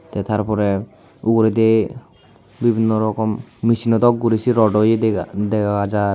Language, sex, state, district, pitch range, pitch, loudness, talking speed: Chakma, male, Tripura, Unakoti, 105-115 Hz, 110 Hz, -18 LUFS, 145 wpm